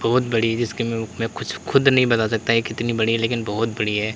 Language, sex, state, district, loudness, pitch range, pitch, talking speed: Hindi, male, Uttar Pradesh, Lalitpur, -21 LUFS, 110-120 Hz, 115 Hz, 245 wpm